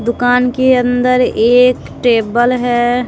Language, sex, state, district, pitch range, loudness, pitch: Hindi, female, Bihar, West Champaran, 240-250 Hz, -12 LUFS, 245 Hz